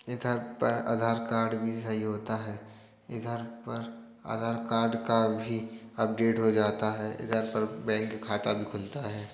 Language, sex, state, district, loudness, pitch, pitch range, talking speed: Hindi, male, Uttar Pradesh, Jalaun, -30 LUFS, 115 Hz, 110-115 Hz, 165 wpm